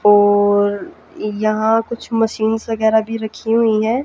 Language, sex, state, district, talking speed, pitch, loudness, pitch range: Hindi, female, Haryana, Jhajjar, 135 wpm, 220 Hz, -17 LUFS, 210-225 Hz